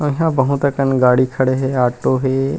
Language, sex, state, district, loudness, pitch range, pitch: Chhattisgarhi, male, Chhattisgarh, Rajnandgaon, -16 LUFS, 130-140 Hz, 130 Hz